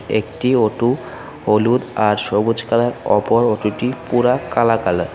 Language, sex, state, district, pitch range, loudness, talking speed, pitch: Bengali, male, Tripura, West Tripura, 105-120 Hz, -17 LUFS, 150 wpm, 115 Hz